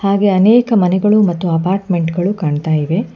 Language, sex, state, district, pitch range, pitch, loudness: Kannada, female, Karnataka, Bangalore, 170-205 Hz, 185 Hz, -14 LUFS